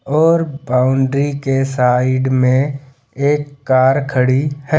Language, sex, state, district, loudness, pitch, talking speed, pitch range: Hindi, male, Madhya Pradesh, Bhopal, -15 LUFS, 135 Hz, 115 wpm, 130-145 Hz